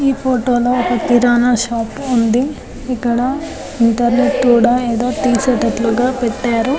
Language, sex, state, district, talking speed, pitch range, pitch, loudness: Telugu, female, Telangana, Nalgonda, 115 wpm, 235-255 Hz, 245 Hz, -15 LUFS